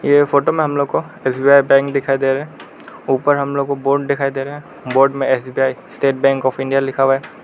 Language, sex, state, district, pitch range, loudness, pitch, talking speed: Hindi, male, Arunachal Pradesh, Lower Dibang Valley, 135-140 Hz, -16 LUFS, 135 Hz, 280 wpm